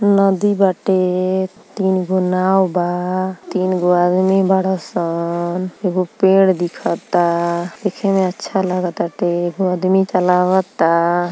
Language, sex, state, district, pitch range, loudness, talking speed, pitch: Bhojpuri, female, Uttar Pradesh, Ghazipur, 175-190 Hz, -17 LUFS, 110 wpm, 185 Hz